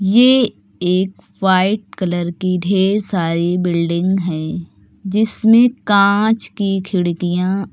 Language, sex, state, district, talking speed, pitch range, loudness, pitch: Hindi, male, Uttar Pradesh, Lucknow, 110 wpm, 175-205 Hz, -16 LUFS, 190 Hz